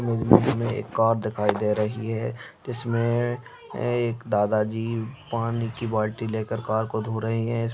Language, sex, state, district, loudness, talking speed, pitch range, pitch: Hindi, male, Uttarakhand, Uttarkashi, -25 LUFS, 180 wpm, 110-115 Hz, 115 Hz